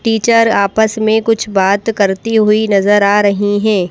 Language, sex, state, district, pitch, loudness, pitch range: Hindi, female, Madhya Pradesh, Bhopal, 215 Hz, -12 LUFS, 200-220 Hz